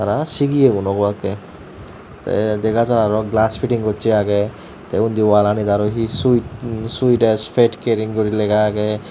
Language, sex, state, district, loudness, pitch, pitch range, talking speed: Chakma, male, Tripura, Dhalai, -17 LUFS, 110 Hz, 105-115 Hz, 160 wpm